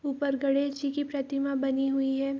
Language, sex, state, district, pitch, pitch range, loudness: Hindi, female, Bihar, Saharsa, 275 Hz, 270-280 Hz, -29 LUFS